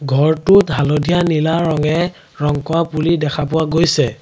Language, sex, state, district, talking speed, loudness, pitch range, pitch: Assamese, male, Assam, Sonitpur, 140 wpm, -16 LUFS, 150-170 Hz, 160 Hz